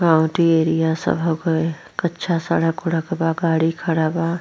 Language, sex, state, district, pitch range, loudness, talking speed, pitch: Hindi, female, Bihar, Vaishali, 160-170 Hz, -20 LUFS, 150 wpm, 165 Hz